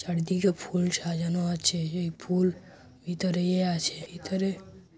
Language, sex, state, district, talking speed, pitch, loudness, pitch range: Bengali, male, West Bengal, Malda, 120 wpm, 175 Hz, -28 LUFS, 170-185 Hz